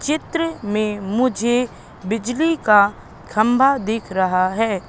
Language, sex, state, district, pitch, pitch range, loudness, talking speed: Hindi, female, Madhya Pradesh, Katni, 220 Hz, 205-260 Hz, -19 LUFS, 110 wpm